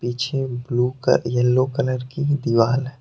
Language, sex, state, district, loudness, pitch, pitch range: Hindi, male, Jharkhand, Deoghar, -21 LUFS, 130 Hz, 125-135 Hz